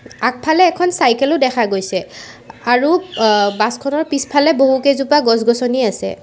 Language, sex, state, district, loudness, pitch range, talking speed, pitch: Assamese, female, Assam, Sonitpur, -15 LUFS, 230-295 Hz, 135 wpm, 265 Hz